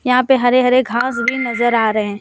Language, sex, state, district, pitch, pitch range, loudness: Hindi, female, Jharkhand, Deoghar, 245 Hz, 230-255 Hz, -15 LUFS